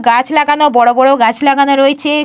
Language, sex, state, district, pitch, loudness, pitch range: Bengali, female, Jharkhand, Jamtara, 275 Hz, -10 LUFS, 245-295 Hz